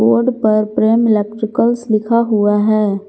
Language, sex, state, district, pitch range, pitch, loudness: Hindi, female, Jharkhand, Garhwa, 210-230 Hz, 215 Hz, -14 LUFS